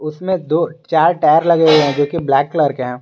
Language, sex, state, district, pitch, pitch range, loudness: Hindi, male, Jharkhand, Garhwa, 155 Hz, 145-165 Hz, -14 LUFS